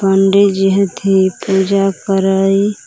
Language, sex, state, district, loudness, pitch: Magahi, female, Jharkhand, Palamu, -13 LUFS, 195 Hz